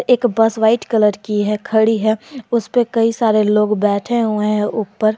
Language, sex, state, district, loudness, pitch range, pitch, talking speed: Hindi, female, Jharkhand, Garhwa, -16 LUFS, 210-230 Hz, 220 Hz, 185 wpm